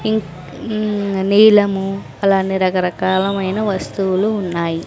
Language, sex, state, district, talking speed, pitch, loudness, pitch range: Telugu, female, Andhra Pradesh, Sri Satya Sai, 85 wpm, 195 Hz, -17 LUFS, 185-205 Hz